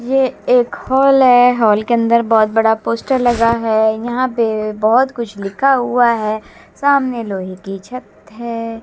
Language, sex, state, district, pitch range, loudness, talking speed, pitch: Hindi, female, Haryana, Jhajjar, 220-250 Hz, -15 LUFS, 165 wpm, 235 Hz